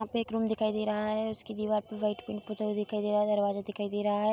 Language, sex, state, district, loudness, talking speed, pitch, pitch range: Hindi, female, Bihar, Gopalganj, -31 LUFS, 345 wpm, 215 Hz, 210-215 Hz